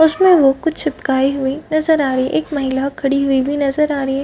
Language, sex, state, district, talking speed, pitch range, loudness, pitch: Hindi, female, Chhattisgarh, Balrampur, 255 wpm, 270-310 Hz, -16 LUFS, 280 Hz